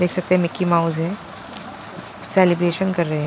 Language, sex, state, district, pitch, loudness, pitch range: Hindi, female, Punjab, Pathankot, 175 Hz, -19 LUFS, 170-185 Hz